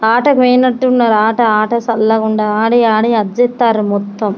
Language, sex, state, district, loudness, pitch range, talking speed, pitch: Telugu, female, Telangana, Karimnagar, -12 LUFS, 215-240 Hz, 150 wpm, 225 Hz